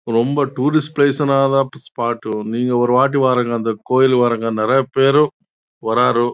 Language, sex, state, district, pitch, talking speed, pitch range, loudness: Tamil, male, Karnataka, Chamarajanagar, 130 Hz, 105 wpm, 120-140 Hz, -16 LUFS